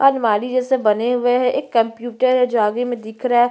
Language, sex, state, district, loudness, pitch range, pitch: Hindi, female, Chhattisgarh, Bastar, -18 LUFS, 230-255 Hz, 245 Hz